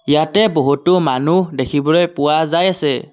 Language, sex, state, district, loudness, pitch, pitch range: Assamese, male, Assam, Kamrup Metropolitan, -15 LUFS, 155 Hz, 145-175 Hz